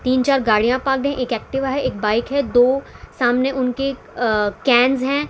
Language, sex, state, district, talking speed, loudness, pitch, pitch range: Hindi, female, Gujarat, Valsad, 170 wpm, -19 LUFS, 255 Hz, 240-270 Hz